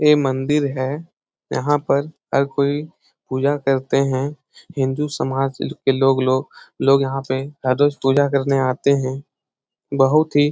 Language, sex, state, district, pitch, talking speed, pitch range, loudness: Hindi, male, Bihar, Lakhisarai, 140 Hz, 150 wpm, 135-145 Hz, -19 LUFS